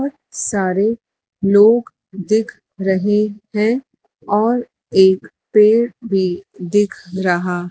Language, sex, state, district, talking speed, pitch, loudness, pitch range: Hindi, male, Madhya Pradesh, Dhar, 95 wpm, 205 Hz, -17 LUFS, 190-225 Hz